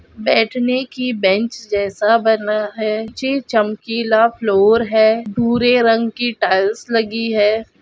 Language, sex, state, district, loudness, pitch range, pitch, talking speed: Hindi, female, Goa, North and South Goa, -16 LUFS, 215-235 Hz, 225 Hz, 125 wpm